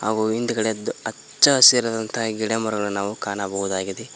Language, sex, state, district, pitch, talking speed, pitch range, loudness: Kannada, male, Karnataka, Koppal, 110 Hz, 115 wpm, 100-115 Hz, -20 LUFS